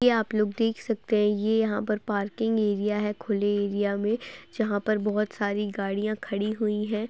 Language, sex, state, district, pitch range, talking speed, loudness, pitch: Hindi, female, Uttar Pradesh, Etah, 205-220 Hz, 185 wpm, -27 LUFS, 210 Hz